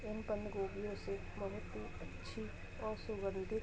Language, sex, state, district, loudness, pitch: Hindi, female, Uttar Pradesh, Muzaffarnagar, -44 LUFS, 110 Hz